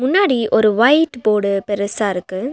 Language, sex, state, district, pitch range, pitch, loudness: Tamil, female, Tamil Nadu, Nilgiris, 200-260 Hz, 215 Hz, -16 LUFS